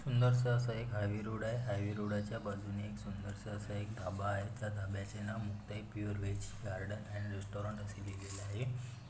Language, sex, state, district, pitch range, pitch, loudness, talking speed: Marathi, male, Maharashtra, Pune, 100-110 Hz, 105 Hz, -40 LUFS, 190 wpm